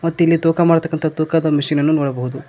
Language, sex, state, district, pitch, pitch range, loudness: Kannada, male, Karnataka, Koppal, 160 Hz, 145-165 Hz, -16 LUFS